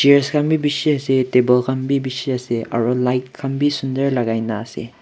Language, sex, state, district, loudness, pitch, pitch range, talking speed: Nagamese, male, Nagaland, Kohima, -19 LUFS, 130 Hz, 125-140 Hz, 205 wpm